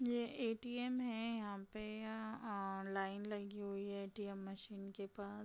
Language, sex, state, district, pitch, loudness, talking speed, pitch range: Hindi, female, Uttar Pradesh, Deoria, 205 Hz, -45 LUFS, 155 wpm, 200-225 Hz